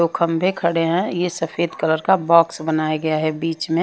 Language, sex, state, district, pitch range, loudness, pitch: Hindi, female, Himachal Pradesh, Shimla, 160-170 Hz, -19 LUFS, 165 Hz